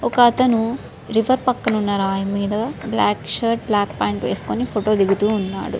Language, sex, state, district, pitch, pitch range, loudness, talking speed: Telugu, female, Andhra Pradesh, Srikakulam, 210 Hz, 195-230 Hz, -19 LUFS, 125 wpm